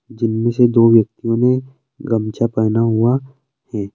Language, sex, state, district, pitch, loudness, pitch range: Hindi, male, Uttarakhand, Uttarkashi, 115 Hz, -16 LUFS, 115-130 Hz